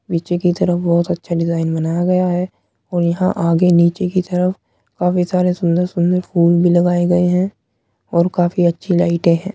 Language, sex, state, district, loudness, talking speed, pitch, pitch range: Hindi, male, Uttar Pradesh, Muzaffarnagar, -16 LUFS, 175 wpm, 175 Hz, 170-180 Hz